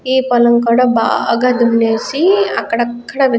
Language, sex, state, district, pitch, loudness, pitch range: Telugu, female, Andhra Pradesh, Guntur, 240 Hz, -13 LUFS, 235-260 Hz